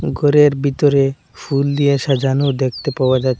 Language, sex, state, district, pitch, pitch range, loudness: Bengali, male, Assam, Hailakandi, 140 Hz, 135-145 Hz, -16 LUFS